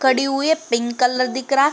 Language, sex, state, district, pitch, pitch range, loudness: Hindi, female, Uttar Pradesh, Varanasi, 260 Hz, 250-275 Hz, -19 LUFS